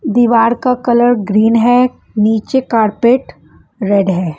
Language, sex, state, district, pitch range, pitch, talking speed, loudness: Hindi, female, Bihar, West Champaran, 210-245 Hz, 230 Hz, 125 wpm, -12 LUFS